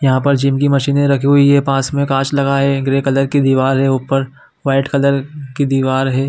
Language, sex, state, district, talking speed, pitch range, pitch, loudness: Hindi, male, Chhattisgarh, Bilaspur, 230 wpm, 135-140 Hz, 135 Hz, -14 LUFS